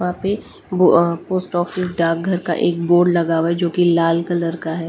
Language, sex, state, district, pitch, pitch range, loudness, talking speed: Hindi, female, Delhi, New Delhi, 175 Hz, 170-180 Hz, -18 LUFS, 220 wpm